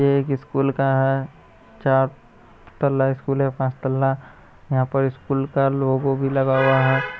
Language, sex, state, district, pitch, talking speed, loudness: Hindi, male, Bihar, Araria, 135 Hz, 160 wpm, -21 LUFS